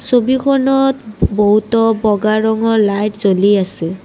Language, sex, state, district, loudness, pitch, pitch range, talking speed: Assamese, female, Assam, Kamrup Metropolitan, -14 LUFS, 215 Hz, 205-235 Hz, 105 wpm